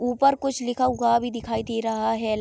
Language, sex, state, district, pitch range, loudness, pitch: Hindi, female, Bihar, Araria, 225-250 Hz, -24 LUFS, 235 Hz